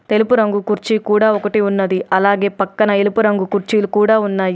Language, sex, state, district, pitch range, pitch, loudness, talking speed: Telugu, female, Telangana, Adilabad, 200-215 Hz, 205 Hz, -15 LUFS, 170 wpm